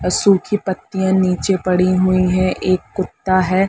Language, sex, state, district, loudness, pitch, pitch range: Hindi, female, Chhattisgarh, Bilaspur, -17 LUFS, 185 Hz, 185-190 Hz